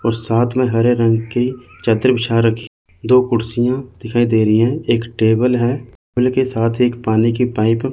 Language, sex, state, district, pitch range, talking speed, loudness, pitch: Hindi, male, Chandigarh, Chandigarh, 115-125 Hz, 205 wpm, -16 LUFS, 115 Hz